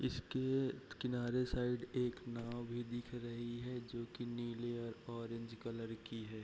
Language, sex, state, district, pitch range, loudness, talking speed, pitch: Hindi, male, Bihar, Bhagalpur, 115-125 Hz, -43 LUFS, 160 wpm, 120 Hz